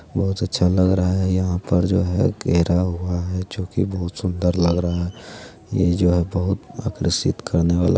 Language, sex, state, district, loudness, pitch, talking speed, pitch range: Hindi, male, Bihar, Jamui, -21 LUFS, 90 Hz, 195 wpm, 85-95 Hz